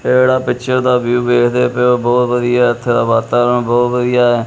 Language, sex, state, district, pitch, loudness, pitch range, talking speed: Punjabi, male, Punjab, Kapurthala, 125 Hz, -13 LUFS, 120-125 Hz, 200 wpm